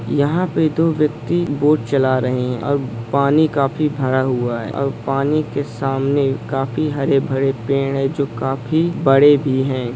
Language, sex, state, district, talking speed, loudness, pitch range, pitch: Hindi, male, Chhattisgarh, Kabirdham, 170 wpm, -18 LUFS, 130-145 Hz, 135 Hz